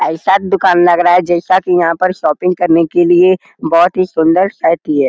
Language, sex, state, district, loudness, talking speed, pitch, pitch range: Hindi, male, Bihar, Jamui, -11 LUFS, 210 wpm, 175 Hz, 170-185 Hz